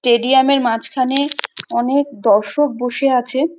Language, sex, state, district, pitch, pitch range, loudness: Bengali, female, West Bengal, North 24 Parganas, 260 Hz, 240-280 Hz, -16 LUFS